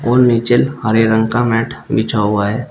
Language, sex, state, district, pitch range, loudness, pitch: Hindi, male, Uttar Pradesh, Shamli, 110-120 Hz, -14 LUFS, 115 Hz